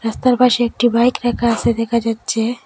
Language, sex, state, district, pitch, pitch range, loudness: Bengali, female, Assam, Hailakandi, 235 Hz, 230-240 Hz, -16 LUFS